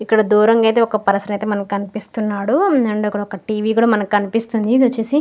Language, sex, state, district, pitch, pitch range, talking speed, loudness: Telugu, female, Andhra Pradesh, Guntur, 215 Hz, 205-230 Hz, 195 wpm, -17 LUFS